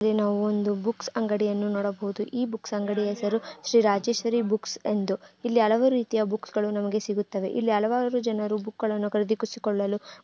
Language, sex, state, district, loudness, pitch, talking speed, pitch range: Kannada, female, Karnataka, Gulbarga, -26 LUFS, 210 Hz, 150 wpm, 205-225 Hz